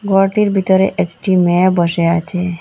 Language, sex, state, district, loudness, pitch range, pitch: Bengali, female, Assam, Hailakandi, -14 LUFS, 175-195 Hz, 185 Hz